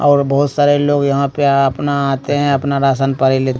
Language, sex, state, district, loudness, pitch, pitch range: Hindi, male, Bihar, Katihar, -14 LUFS, 140 Hz, 135-145 Hz